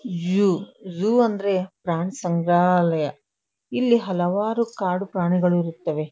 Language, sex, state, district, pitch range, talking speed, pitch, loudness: Kannada, female, Karnataka, Dharwad, 170-200 Hz, 110 wpm, 180 Hz, -22 LUFS